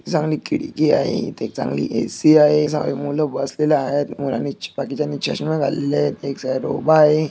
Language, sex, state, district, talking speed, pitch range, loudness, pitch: Marathi, male, Maharashtra, Dhule, 190 wpm, 140-150 Hz, -19 LUFS, 145 Hz